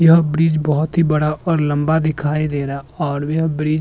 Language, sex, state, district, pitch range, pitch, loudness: Hindi, male, Maharashtra, Chandrapur, 150-160 Hz, 155 Hz, -18 LUFS